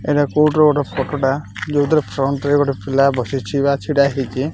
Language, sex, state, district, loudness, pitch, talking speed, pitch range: Odia, male, Odisha, Malkangiri, -17 LUFS, 140 Hz, 200 wpm, 135-145 Hz